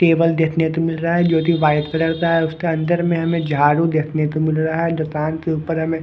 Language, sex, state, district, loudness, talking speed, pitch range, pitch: Hindi, male, Bihar, West Champaran, -18 LUFS, 260 wpm, 155-165 Hz, 160 Hz